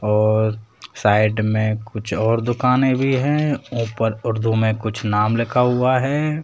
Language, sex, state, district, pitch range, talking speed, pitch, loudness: Hindi, male, Rajasthan, Jaipur, 110-130 Hz, 150 wpm, 115 Hz, -19 LUFS